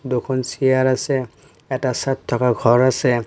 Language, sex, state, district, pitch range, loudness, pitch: Assamese, male, Assam, Kamrup Metropolitan, 125-135 Hz, -19 LUFS, 130 Hz